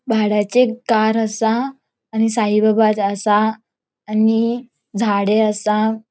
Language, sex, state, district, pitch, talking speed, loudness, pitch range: Konkani, female, Goa, North and South Goa, 220 Hz, 110 wpm, -17 LUFS, 210-225 Hz